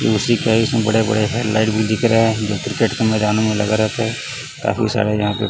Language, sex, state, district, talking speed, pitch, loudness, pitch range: Hindi, male, Chhattisgarh, Raipur, 240 wpm, 110 Hz, -17 LUFS, 110-115 Hz